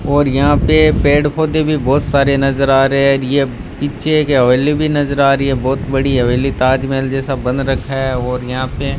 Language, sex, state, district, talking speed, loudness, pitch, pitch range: Hindi, male, Rajasthan, Bikaner, 215 wpm, -14 LUFS, 135 Hz, 130-145 Hz